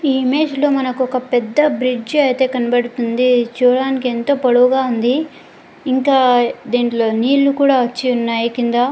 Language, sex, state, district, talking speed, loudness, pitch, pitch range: Telugu, female, Andhra Pradesh, Guntur, 135 wpm, -15 LUFS, 255 Hz, 245-265 Hz